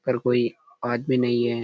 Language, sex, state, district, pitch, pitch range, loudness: Rajasthani, male, Rajasthan, Churu, 120 Hz, 120-125 Hz, -24 LUFS